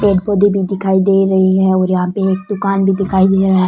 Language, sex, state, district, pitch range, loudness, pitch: Rajasthani, female, Rajasthan, Churu, 190-195 Hz, -13 LUFS, 195 Hz